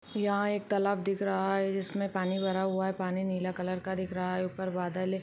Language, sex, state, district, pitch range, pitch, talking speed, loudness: Hindi, female, Rajasthan, Churu, 185-195 Hz, 190 Hz, 250 wpm, -32 LUFS